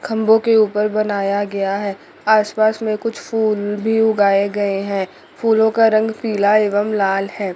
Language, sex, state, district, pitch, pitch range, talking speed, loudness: Hindi, female, Chandigarh, Chandigarh, 210 Hz, 200-220 Hz, 165 wpm, -17 LUFS